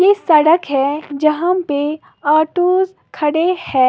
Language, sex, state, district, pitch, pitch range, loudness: Hindi, female, Uttar Pradesh, Lalitpur, 310 Hz, 295-360 Hz, -15 LUFS